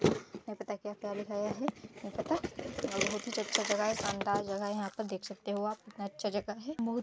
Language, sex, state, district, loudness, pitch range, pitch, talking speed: Hindi, female, Chhattisgarh, Sarguja, -36 LUFS, 205-220 Hz, 210 Hz, 255 wpm